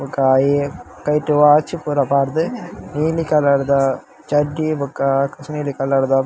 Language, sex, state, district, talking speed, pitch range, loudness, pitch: Tulu, male, Karnataka, Dakshina Kannada, 145 wpm, 135-150 Hz, -18 LUFS, 145 Hz